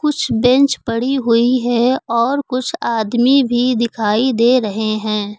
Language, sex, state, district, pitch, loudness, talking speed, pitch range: Hindi, female, Uttar Pradesh, Lucknow, 240 Hz, -15 LUFS, 145 wpm, 230-255 Hz